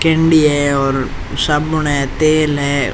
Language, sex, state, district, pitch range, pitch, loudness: Rajasthani, male, Rajasthan, Churu, 140-155 Hz, 145 Hz, -15 LUFS